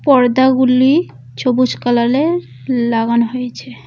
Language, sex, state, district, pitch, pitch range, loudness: Bengali, female, West Bengal, Cooch Behar, 250 Hz, 235-260 Hz, -14 LUFS